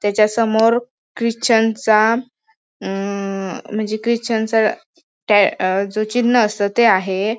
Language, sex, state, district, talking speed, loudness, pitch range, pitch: Marathi, female, Maharashtra, Sindhudurg, 115 wpm, -17 LUFS, 205-235 Hz, 220 Hz